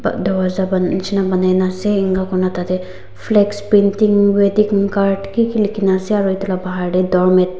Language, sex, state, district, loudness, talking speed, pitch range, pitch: Nagamese, female, Nagaland, Dimapur, -16 LUFS, 190 wpm, 185-200 Hz, 190 Hz